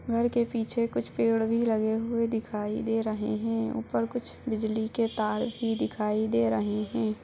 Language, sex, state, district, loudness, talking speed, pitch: Hindi, female, Chhattisgarh, Balrampur, -29 LUFS, 180 wpm, 220 Hz